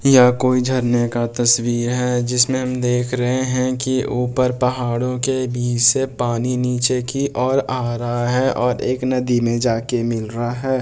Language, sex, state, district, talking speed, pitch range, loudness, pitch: Hindi, male, Bihar, Bhagalpur, 175 wpm, 120-130 Hz, -18 LUFS, 125 Hz